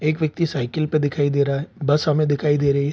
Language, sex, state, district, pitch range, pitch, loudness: Hindi, male, Bihar, Supaul, 140-155 Hz, 145 Hz, -21 LUFS